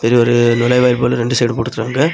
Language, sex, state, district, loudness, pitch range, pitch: Tamil, male, Tamil Nadu, Kanyakumari, -14 LUFS, 120-125 Hz, 120 Hz